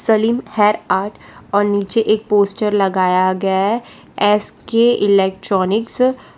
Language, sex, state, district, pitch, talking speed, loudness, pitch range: Hindi, female, Gujarat, Valsad, 205 Hz, 130 wpm, -16 LUFS, 195-220 Hz